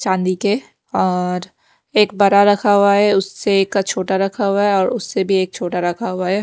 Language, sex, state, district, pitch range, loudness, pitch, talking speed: Hindi, female, Himachal Pradesh, Shimla, 185-205 Hz, -17 LUFS, 195 Hz, 205 wpm